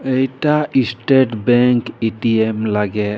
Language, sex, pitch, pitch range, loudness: Sadri, male, 120 Hz, 110-130 Hz, -16 LUFS